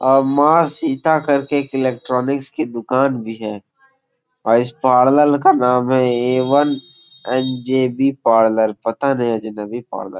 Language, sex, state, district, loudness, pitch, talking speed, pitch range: Hindi, male, Bihar, Gopalganj, -17 LUFS, 130 Hz, 165 wpm, 120-140 Hz